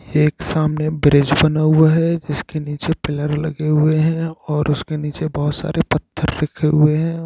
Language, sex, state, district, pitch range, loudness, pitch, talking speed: Hindi, male, Jharkhand, Sahebganj, 150-160 Hz, -18 LUFS, 155 Hz, 180 wpm